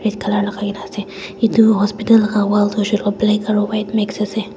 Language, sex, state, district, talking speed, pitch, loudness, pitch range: Nagamese, female, Nagaland, Dimapur, 210 wpm, 210 Hz, -17 LUFS, 205-215 Hz